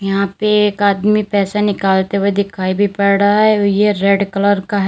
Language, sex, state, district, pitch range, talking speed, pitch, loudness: Hindi, female, Uttar Pradesh, Lalitpur, 195-205 Hz, 210 wpm, 200 Hz, -14 LUFS